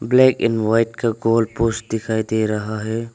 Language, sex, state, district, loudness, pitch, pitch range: Hindi, male, Arunachal Pradesh, Longding, -19 LUFS, 115 Hz, 110-115 Hz